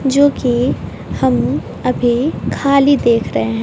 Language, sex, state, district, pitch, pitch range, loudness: Hindi, female, Bihar, West Champaran, 250 Hz, 235-280 Hz, -15 LUFS